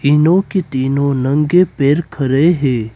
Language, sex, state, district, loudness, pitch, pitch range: Hindi, male, Arunachal Pradesh, Papum Pare, -14 LUFS, 145 Hz, 135-170 Hz